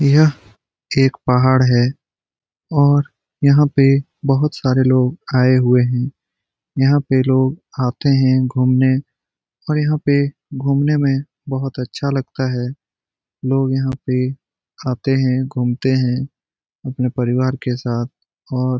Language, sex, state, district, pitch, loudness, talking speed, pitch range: Hindi, male, Bihar, Jamui, 130 Hz, -17 LUFS, 140 wpm, 125-140 Hz